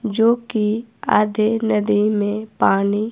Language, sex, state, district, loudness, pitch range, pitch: Hindi, female, Himachal Pradesh, Shimla, -19 LUFS, 210-225 Hz, 215 Hz